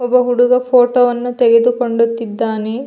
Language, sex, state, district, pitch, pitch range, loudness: Kannada, female, Karnataka, Mysore, 245 Hz, 230-250 Hz, -14 LUFS